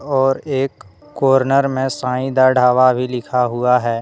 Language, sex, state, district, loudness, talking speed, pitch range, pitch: Hindi, male, Jharkhand, Deoghar, -16 LUFS, 165 wpm, 125-135 Hz, 130 Hz